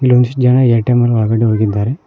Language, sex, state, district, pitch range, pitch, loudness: Kannada, male, Karnataka, Koppal, 110-125 Hz, 120 Hz, -12 LUFS